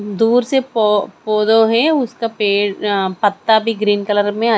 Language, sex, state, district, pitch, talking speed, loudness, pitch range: Hindi, female, Chandigarh, Chandigarh, 215 Hz, 170 wpm, -15 LUFS, 205-230 Hz